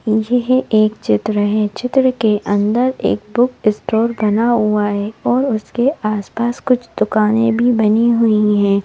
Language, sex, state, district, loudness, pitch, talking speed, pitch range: Hindi, female, Madhya Pradesh, Bhopal, -16 LUFS, 220 Hz, 140 wpm, 210-240 Hz